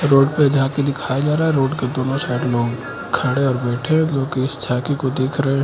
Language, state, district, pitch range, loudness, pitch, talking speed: Hindi, Arunachal Pradesh, Lower Dibang Valley, 130-140 Hz, -19 LUFS, 135 Hz, 245 wpm